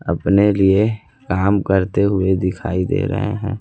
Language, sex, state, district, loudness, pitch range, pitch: Hindi, male, Chhattisgarh, Raipur, -17 LUFS, 95-105 Hz, 100 Hz